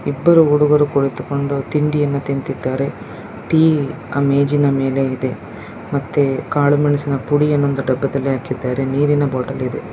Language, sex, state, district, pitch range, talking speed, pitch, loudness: Kannada, male, Karnataka, Dakshina Kannada, 135-145 Hz, 115 wpm, 140 Hz, -17 LUFS